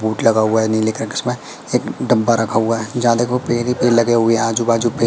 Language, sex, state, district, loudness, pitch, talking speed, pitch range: Hindi, female, Madhya Pradesh, Katni, -17 LUFS, 115 Hz, 295 wpm, 110-120 Hz